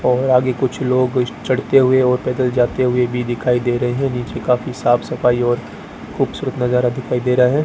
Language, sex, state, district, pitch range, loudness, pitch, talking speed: Hindi, female, Rajasthan, Bikaner, 125-130 Hz, -17 LUFS, 125 Hz, 195 wpm